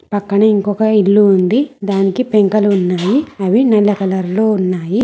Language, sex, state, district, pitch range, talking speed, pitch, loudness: Telugu, female, Telangana, Mahabubabad, 195-215 Hz, 145 wpm, 205 Hz, -13 LUFS